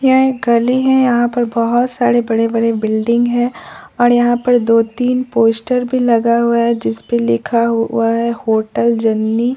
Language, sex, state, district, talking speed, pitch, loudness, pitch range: Hindi, male, Bihar, Katihar, 195 wpm, 235 Hz, -14 LUFS, 230-245 Hz